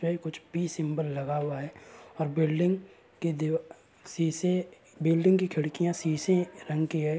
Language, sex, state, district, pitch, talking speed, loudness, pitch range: Hindi, male, Uttar Pradesh, Varanasi, 165 Hz, 160 wpm, -29 LUFS, 155-175 Hz